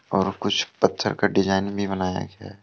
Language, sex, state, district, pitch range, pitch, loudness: Hindi, male, Jharkhand, Deoghar, 95-105 Hz, 95 Hz, -23 LUFS